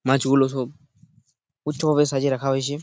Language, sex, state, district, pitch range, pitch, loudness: Bengali, male, West Bengal, Purulia, 135-145 Hz, 140 Hz, -22 LUFS